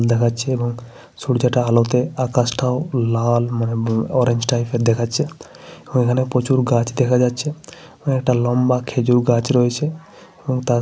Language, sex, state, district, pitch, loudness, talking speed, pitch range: Bengali, male, Jharkhand, Sahebganj, 125 Hz, -19 LUFS, 155 wpm, 120-130 Hz